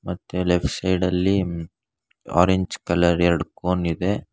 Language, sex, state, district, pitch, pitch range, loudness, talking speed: Kannada, male, Karnataka, Bangalore, 90 Hz, 85-95 Hz, -22 LUFS, 125 wpm